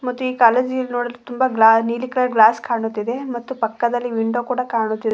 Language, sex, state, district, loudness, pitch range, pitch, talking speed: Kannada, female, Karnataka, Koppal, -19 LUFS, 225-250 Hz, 240 Hz, 175 wpm